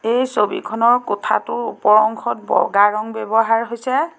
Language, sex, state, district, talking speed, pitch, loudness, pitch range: Assamese, female, Assam, Sonitpur, 130 wpm, 225 Hz, -17 LUFS, 215-235 Hz